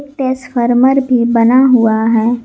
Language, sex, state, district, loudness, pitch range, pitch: Hindi, female, Jharkhand, Garhwa, -11 LUFS, 235-260 Hz, 245 Hz